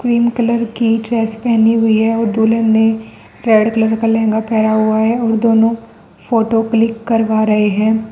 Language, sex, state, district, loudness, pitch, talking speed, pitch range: Hindi, female, Uttar Pradesh, Saharanpur, -14 LUFS, 225 Hz, 175 wpm, 220-230 Hz